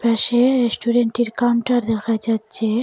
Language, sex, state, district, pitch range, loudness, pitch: Bengali, female, Assam, Hailakandi, 225-240 Hz, -17 LUFS, 235 Hz